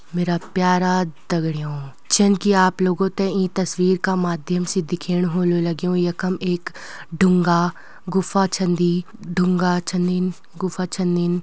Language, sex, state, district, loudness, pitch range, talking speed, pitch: Garhwali, female, Uttarakhand, Uttarkashi, -20 LUFS, 175-185 Hz, 130 wpm, 180 Hz